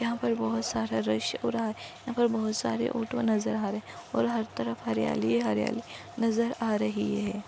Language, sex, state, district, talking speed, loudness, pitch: Hindi, female, Maharashtra, Pune, 215 wpm, -30 LUFS, 210 Hz